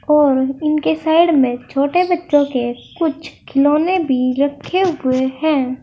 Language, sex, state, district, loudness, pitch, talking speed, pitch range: Hindi, female, Uttar Pradesh, Saharanpur, -16 LUFS, 295 Hz, 135 wpm, 265-320 Hz